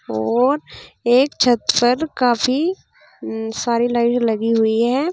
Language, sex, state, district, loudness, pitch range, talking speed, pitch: Hindi, female, Uttar Pradesh, Saharanpur, -18 LUFS, 230-260 Hz, 105 wpm, 240 Hz